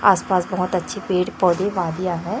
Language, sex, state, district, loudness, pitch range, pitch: Hindi, female, Chhattisgarh, Raipur, -21 LUFS, 180-200 Hz, 185 Hz